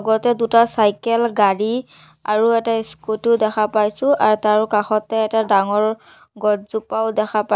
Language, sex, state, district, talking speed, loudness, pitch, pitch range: Assamese, female, Assam, Sonitpur, 135 wpm, -18 LUFS, 220 Hz, 210-230 Hz